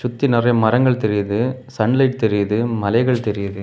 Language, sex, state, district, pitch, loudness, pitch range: Tamil, male, Tamil Nadu, Kanyakumari, 115 Hz, -18 LUFS, 105-125 Hz